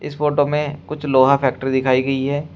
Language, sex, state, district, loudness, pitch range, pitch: Hindi, male, Uttar Pradesh, Shamli, -18 LUFS, 135-150 Hz, 140 Hz